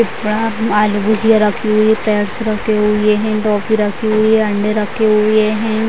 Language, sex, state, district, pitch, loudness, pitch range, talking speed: Hindi, female, Bihar, Vaishali, 215 Hz, -14 LUFS, 210-220 Hz, 135 wpm